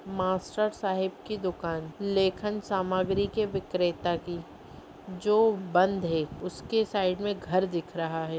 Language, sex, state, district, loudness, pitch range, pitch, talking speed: Hindi, female, Bihar, Gopalganj, -29 LUFS, 175-200 Hz, 185 Hz, 135 wpm